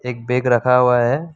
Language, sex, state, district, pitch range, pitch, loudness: Hindi, male, Assam, Kamrup Metropolitan, 120-125 Hz, 125 Hz, -16 LUFS